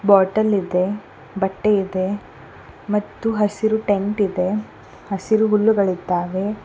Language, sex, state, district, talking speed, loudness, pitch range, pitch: Kannada, female, Karnataka, Koppal, 90 wpm, -20 LUFS, 190-210 Hz, 205 Hz